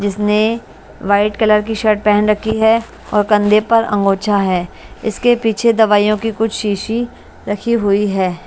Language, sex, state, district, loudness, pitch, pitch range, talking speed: Hindi, female, Bihar, West Champaran, -15 LUFS, 210 Hz, 205-225 Hz, 155 wpm